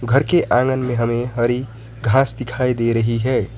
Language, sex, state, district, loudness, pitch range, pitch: Hindi, male, West Bengal, Alipurduar, -19 LUFS, 115-130 Hz, 120 Hz